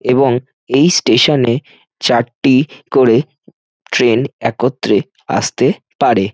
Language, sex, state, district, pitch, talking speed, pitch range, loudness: Bengali, male, West Bengal, Jhargram, 130 Hz, 95 wpm, 120-135 Hz, -14 LUFS